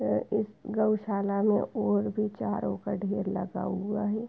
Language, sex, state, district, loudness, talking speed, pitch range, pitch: Hindi, female, Uttar Pradesh, Etah, -30 LUFS, 170 wpm, 185-210 Hz, 205 Hz